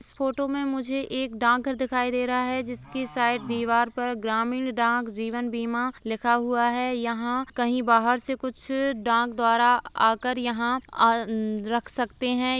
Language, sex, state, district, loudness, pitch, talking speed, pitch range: Hindi, female, Bihar, Begusarai, -25 LUFS, 245 Hz, 165 wpm, 235-255 Hz